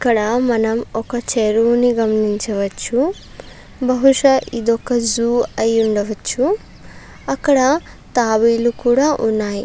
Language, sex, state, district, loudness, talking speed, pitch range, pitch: Telugu, female, Andhra Pradesh, Chittoor, -17 LUFS, 80 wpm, 225-255 Hz, 235 Hz